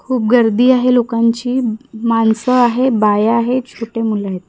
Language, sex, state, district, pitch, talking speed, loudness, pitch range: Marathi, female, Maharashtra, Gondia, 235 Hz, 145 wpm, -14 LUFS, 225-250 Hz